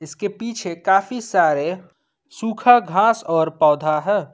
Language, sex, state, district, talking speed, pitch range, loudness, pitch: Hindi, male, Jharkhand, Ranchi, 125 wpm, 160-225 Hz, -19 LUFS, 195 Hz